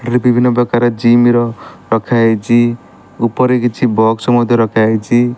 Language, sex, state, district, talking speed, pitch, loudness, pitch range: Odia, male, Odisha, Malkangiri, 155 wpm, 120 Hz, -12 LUFS, 115-120 Hz